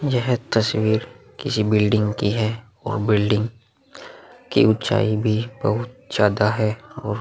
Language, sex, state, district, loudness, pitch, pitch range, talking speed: Hindi, male, Bihar, Vaishali, -21 LUFS, 110 Hz, 105-115 Hz, 135 wpm